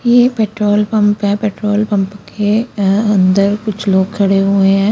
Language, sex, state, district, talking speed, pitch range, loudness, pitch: Hindi, female, Chandigarh, Chandigarh, 160 wpm, 195-210 Hz, -13 LUFS, 205 Hz